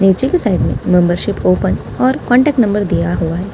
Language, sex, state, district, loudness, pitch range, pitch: Hindi, female, Delhi, New Delhi, -14 LUFS, 175-250 Hz, 195 Hz